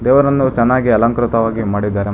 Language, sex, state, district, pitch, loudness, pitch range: Kannada, male, Karnataka, Bangalore, 115 Hz, -14 LUFS, 105-130 Hz